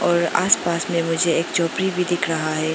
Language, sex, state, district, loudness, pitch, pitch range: Hindi, female, Arunachal Pradesh, Lower Dibang Valley, -20 LUFS, 170 Hz, 165-175 Hz